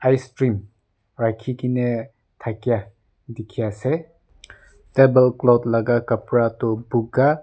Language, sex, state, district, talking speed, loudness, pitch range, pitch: Nagamese, male, Nagaland, Dimapur, 95 wpm, -21 LUFS, 110-130 Hz, 115 Hz